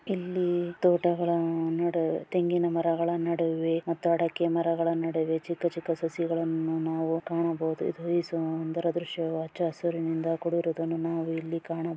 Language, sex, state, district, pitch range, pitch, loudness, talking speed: Kannada, female, Karnataka, Dharwad, 165-170 Hz, 165 Hz, -29 LUFS, 125 wpm